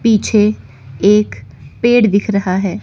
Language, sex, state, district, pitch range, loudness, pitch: Hindi, female, Chandigarh, Chandigarh, 190-215 Hz, -14 LUFS, 205 Hz